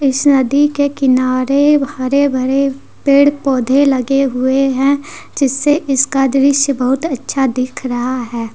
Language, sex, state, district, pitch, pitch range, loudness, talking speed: Hindi, female, Jharkhand, Deoghar, 270 Hz, 255-280 Hz, -14 LUFS, 135 wpm